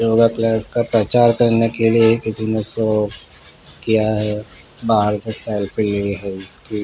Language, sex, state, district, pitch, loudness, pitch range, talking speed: Hindi, male, Bihar, Patna, 110 Hz, -18 LUFS, 105-115 Hz, 140 wpm